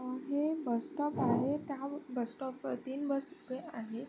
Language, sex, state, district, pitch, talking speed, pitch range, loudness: Marathi, female, Maharashtra, Sindhudurg, 275 Hz, 160 wpm, 255-290 Hz, -36 LUFS